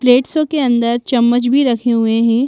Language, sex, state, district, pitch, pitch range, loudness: Hindi, female, Madhya Pradesh, Bhopal, 245 Hz, 235-260 Hz, -14 LUFS